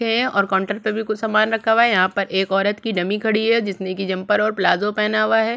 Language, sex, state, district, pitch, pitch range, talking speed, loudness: Hindi, female, Chhattisgarh, Sukma, 210 Hz, 195-220 Hz, 290 wpm, -19 LUFS